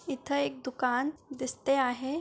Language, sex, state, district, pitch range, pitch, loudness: Marathi, male, Maharashtra, Sindhudurg, 255-280 Hz, 270 Hz, -31 LUFS